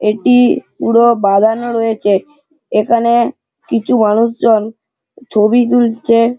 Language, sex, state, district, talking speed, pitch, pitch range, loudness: Bengali, male, West Bengal, Malda, 85 wpm, 230 Hz, 220-240 Hz, -13 LUFS